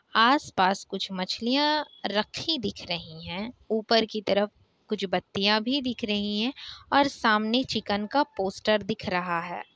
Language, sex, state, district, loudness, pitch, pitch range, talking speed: Hindi, female, Bihar, Kishanganj, -27 LUFS, 215 Hz, 195-240 Hz, 155 wpm